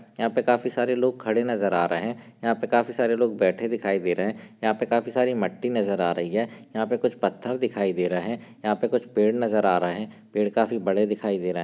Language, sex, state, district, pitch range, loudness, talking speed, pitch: Hindi, male, Maharashtra, Chandrapur, 100-120 Hz, -25 LUFS, 240 wpm, 110 Hz